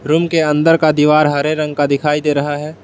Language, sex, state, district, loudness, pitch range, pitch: Hindi, male, Jharkhand, Palamu, -14 LUFS, 145-155 Hz, 150 Hz